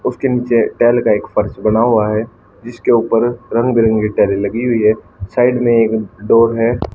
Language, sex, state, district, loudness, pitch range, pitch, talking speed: Hindi, female, Haryana, Charkhi Dadri, -14 LUFS, 110-120 Hz, 115 Hz, 190 wpm